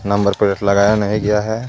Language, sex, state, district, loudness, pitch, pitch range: Hindi, male, Jharkhand, Garhwa, -16 LUFS, 105 Hz, 100-105 Hz